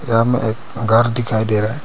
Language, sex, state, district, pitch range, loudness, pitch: Hindi, male, Arunachal Pradesh, Papum Pare, 110-120 Hz, -16 LUFS, 115 Hz